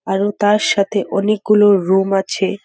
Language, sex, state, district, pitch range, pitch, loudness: Bengali, female, West Bengal, Dakshin Dinajpur, 195-205 Hz, 200 Hz, -15 LUFS